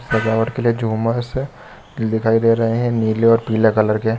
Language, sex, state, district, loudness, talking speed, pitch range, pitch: Hindi, male, Jharkhand, Sahebganj, -17 LUFS, 200 wpm, 110-120 Hz, 115 Hz